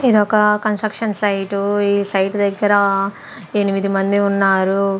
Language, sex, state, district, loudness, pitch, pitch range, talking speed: Telugu, female, Andhra Pradesh, Sri Satya Sai, -17 LUFS, 200 Hz, 195-210 Hz, 110 wpm